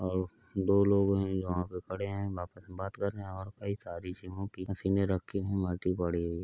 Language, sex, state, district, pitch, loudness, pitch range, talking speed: Hindi, male, Uttar Pradesh, Hamirpur, 95 Hz, -33 LUFS, 90-100 Hz, 235 wpm